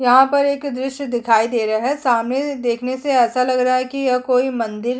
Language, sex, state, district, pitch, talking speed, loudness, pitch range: Hindi, female, Chhattisgarh, Kabirdham, 255 Hz, 230 wpm, -18 LUFS, 240-270 Hz